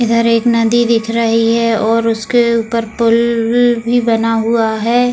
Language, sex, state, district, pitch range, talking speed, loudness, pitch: Hindi, female, Goa, North and South Goa, 230-235 Hz, 175 wpm, -13 LUFS, 230 Hz